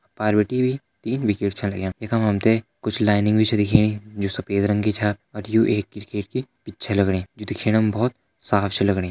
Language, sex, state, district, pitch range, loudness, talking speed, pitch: Hindi, male, Uttarakhand, Tehri Garhwal, 100-110 Hz, -22 LUFS, 245 wpm, 105 Hz